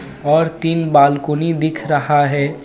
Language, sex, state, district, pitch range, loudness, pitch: Hindi, male, Jharkhand, Ranchi, 145-160 Hz, -16 LUFS, 150 Hz